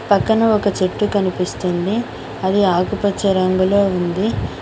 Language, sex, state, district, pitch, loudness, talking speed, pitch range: Telugu, female, Telangana, Mahabubabad, 195 Hz, -17 LUFS, 105 wpm, 185-205 Hz